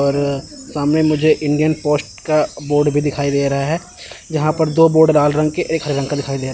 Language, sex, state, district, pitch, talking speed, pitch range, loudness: Hindi, male, Chandigarh, Chandigarh, 150 Hz, 220 wpm, 140-155 Hz, -16 LUFS